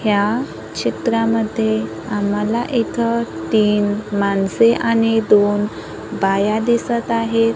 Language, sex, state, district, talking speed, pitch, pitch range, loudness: Marathi, female, Maharashtra, Gondia, 85 wpm, 215 Hz, 205-230 Hz, -18 LUFS